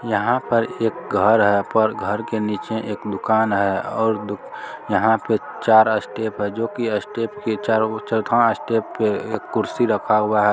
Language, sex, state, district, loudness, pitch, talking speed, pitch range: Maithili, male, Bihar, Supaul, -20 LUFS, 110 Hz, 190 wpm, 105-115 Hz